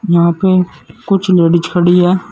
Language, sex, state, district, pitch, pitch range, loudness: Hindi, male, Uttar Pradesh, Saharanpur, 180 Hz, 170-190 Hz, -12 LUFS